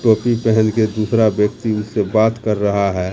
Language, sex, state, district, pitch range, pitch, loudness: Hindi, male, Bihar, Katihar, 105-110 Hz, 110 Hz, -17 LUFS